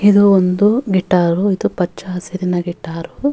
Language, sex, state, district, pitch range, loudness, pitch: Kannada, female, Karnataka, Dharwad, 175-200 Hz, -16 LUFS, 185 Hz